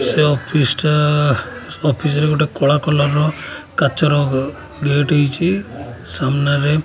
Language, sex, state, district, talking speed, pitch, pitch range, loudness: Odia, male, Odisha, Khordha, 130 wpm, 145 Hz, 140-150 Hz, -16 LUFS